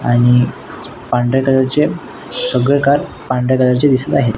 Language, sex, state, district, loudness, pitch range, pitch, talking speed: Marathi, male, Maharashtra, Nagpur, -14 LUFS, 125-140 Hz, 130 Hz, 150 wpm